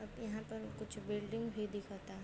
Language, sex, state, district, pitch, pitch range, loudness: Bhojpuri, female, Uttar Pradesh, Varanasi, 210 Hz, 205-220 Hz, -44 LUFS